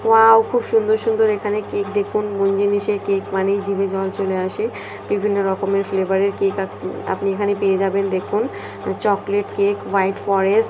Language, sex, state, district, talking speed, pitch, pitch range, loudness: Bengali, female, West Bengal, North 24 Parganas, 175 wpm, 200 Hz, 195-210 Hz, -19 LUFS